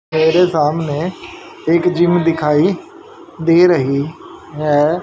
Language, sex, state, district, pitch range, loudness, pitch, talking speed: Hindi, male, Haryana, Jhajjar, 150-175 Hz, -15 LUFS, 165 Hz, 95 wpm